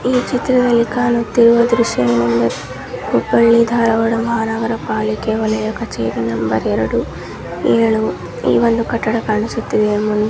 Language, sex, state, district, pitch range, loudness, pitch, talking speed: Kannada, male, Karnataka, Dharwad, 210-235 Hz, -16 LUFS, 225 Hz, 95 wpm